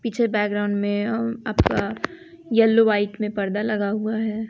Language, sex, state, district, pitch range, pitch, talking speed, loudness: Hindi, female, Bihar, West Champaran, 205-225 Hz, 215 Hz, 160 wpm, -22 LUFS